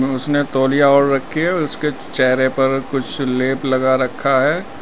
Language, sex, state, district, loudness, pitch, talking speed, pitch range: Hindi, male, Uttar Pradesh, Lalitpur, -16 LUFS, 135 Hz, 160 wpm, 130-140 Hz